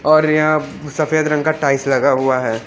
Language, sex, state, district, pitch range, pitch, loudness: Hindi, female, Haryana, Charkhi Dadri, 135-155 Hz, 150 Hz, -16 LUFS